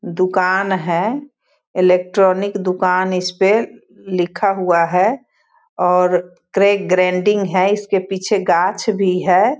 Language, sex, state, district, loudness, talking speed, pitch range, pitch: Hindi, female, Bihar, Sitamarhi, -16 LUFS, 105 wpm, 180-200 Hz, 185 Hz